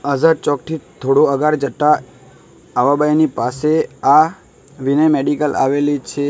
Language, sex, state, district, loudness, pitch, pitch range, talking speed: Gujarati, male, Gujarat, Valsad, -16 LUFS, 145 Hz, 140-155 Hz, 125 wpm